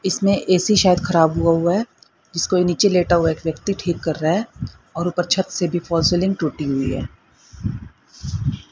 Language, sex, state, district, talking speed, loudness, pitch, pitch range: Hindi, female, Haryana, Charkhi Dadri, 170 wpm, -19 LUFS, 175 Hz, 165-185 Hz